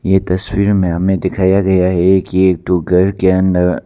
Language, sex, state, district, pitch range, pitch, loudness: Hindi, male, Arunachal Pradesh, Papum Pare, 90-95 Hz, 95 Hz, -13 LUFS